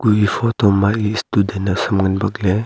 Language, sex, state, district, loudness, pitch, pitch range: Wancho, male, Arunachal Pradesh, Longding, -17 LUFS, 100 Hz, 100-105 Hz